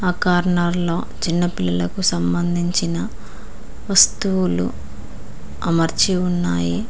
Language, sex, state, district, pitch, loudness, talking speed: Telugu, female, Telangana, Mahabubabad, 170 Hz, -19 LUFS, 60 wpm